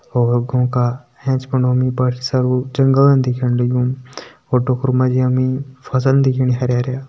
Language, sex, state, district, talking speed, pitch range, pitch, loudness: Hindi, male, Uttarakhand, Tehri Garhwal, 160 wpm, 125-130 Hz, 130 Hz, -17 LUFS